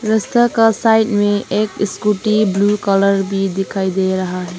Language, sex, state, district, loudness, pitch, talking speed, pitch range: Hindi, female, Arunachal Pradesh, Longding, -16 LUFS, 205 Hz, 170 wpm, 195-215 Hz